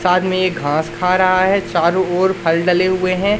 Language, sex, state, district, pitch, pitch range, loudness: Hindi, male, Madhya Pradesh, Katni, 185 Hz, 175-185 Hz, -16 LUFS